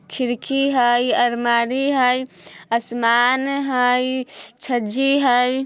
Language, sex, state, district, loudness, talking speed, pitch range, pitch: Bajjika, female, Bihar, Vaishali, -18 LUFS, 85 wpm, 240-265 Hz, 250 Hz